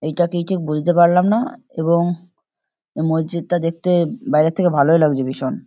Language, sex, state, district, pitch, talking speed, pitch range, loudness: Bengali, male, West Bengal, Kolkata, 170 Hz, 150 wpm, 155-175 Hz, -18 LUFS